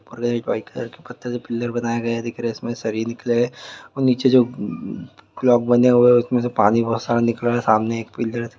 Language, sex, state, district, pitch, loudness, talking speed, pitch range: Hindi, male, Andhra Pradesh, Guntur, 120 Hz, -20 LUFS, 230 wpm, 115-120 Hz